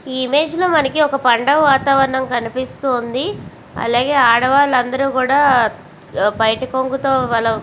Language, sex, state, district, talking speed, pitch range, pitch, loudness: Telugu, female, Andhra Pradesh, Visakhapatnam, 120 wpm, 240-275 Hz, 260 Hz, -15 LUFS